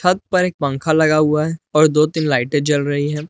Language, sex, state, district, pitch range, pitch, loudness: Hindi, male, Jharkhand, Palamu, 145-160 Hz, 155 Hz, -17 LUFS